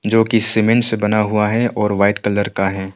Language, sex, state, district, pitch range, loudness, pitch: Hindi, male, Arunachal Pradesh, Longding, 100-115 Hz, -15 LUFS, 105 Hz